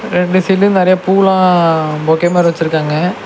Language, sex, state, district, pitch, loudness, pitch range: Tamil, male, Tamil Nadu, Nilgiris, 180 Hz, -12 LUFS, 160-185 Hz